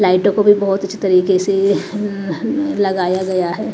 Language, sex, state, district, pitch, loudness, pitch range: Hindi, female, Maharashtra, Mumbai Suburban, 195 Hz, -16 LUFS, 185-205 Hz